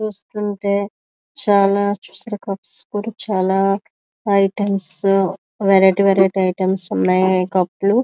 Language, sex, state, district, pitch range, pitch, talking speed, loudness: Telugu, female, Andhra Pradesh, Visakhapatnam, 190-205 Hz, 195 Hz, 75 wpm, -18 LUFS